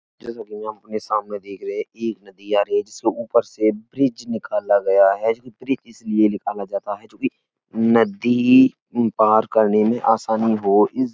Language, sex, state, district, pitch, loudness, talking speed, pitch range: Hindi, male, Uttar Pradesh, Etah, 110 Hz, -20 LUFS, 195 wpm, 105-120 Hz